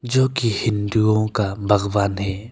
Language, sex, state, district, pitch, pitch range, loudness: Hindi, male, Arunachal Pradesh, Longding, 105 Hz, 100-115 Hz, -20 LUFS